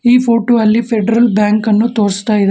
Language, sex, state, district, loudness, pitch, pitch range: Kannada, male, Karnataka, Bangalore, -12 LUFS, 220 Hz, 210-235 Hz